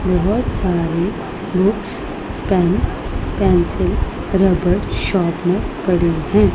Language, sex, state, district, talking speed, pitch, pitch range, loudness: Hindi, female, Punjab, Pathankot, 80 wpm, 180 Hz, 170-190 Hz, -18 LUFS